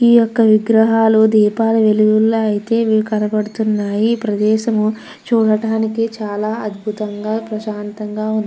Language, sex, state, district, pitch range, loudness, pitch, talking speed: Telugu, female, Andhra Pradesh, Krishna, 215-225 Hz, -16 LUFS, 215 Hz, 105 wpm